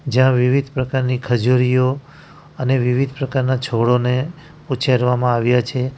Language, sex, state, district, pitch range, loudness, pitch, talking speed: Gujarati, male, Gujarat, Valsad, 125-135 Hz, -18 LUFS, 130 Hz, 110 wpm